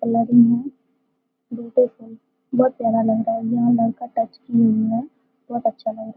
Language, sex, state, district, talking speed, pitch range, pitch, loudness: Hindi, female, Bihar, Gopalganj, 205 wpm, 225-245 Hz, 235 Hz, -20 LUFS